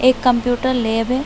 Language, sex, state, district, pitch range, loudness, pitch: Hindi, female, Uttar Pradesh, Hamirpur, 240-255 Hz, -17 LUFS, 250 Hz